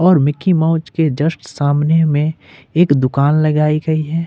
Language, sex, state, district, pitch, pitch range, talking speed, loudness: Hindi, male, Jharkhand, Ranchi, 155 Hz, 145-160 Hz, 170 wpm, -15 LUFS